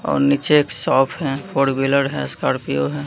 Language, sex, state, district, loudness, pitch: Hindi, male, Bihar, Katihar, -19 LUFS, 135 Hz